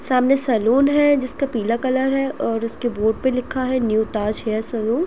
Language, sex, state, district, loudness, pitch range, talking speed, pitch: Hindi, female, Uttar Pradesh, Jyotiba Phule Nagar, -20 LUFS, 225-270 Hz, 215 wpm, 250 Hz